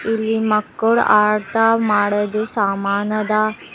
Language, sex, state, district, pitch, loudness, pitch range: Kannada, female, Karnataka, Bidar, 215 Hz, -17 LUFS, 205-220 Hz